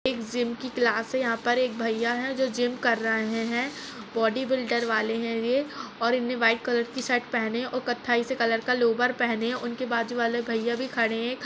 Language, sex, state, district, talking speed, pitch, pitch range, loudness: Hindi, female, Uttar Pradesh, Jalaun, 215 wpm, 240 Hz, 230-250 Hz, -26 LUFS